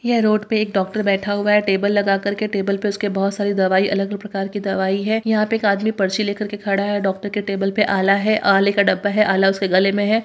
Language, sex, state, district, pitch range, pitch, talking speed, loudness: Hindi, female, Bihar, Purnia, 195-210 Hz, 200 Hz, 280 wpm, -19 LUFS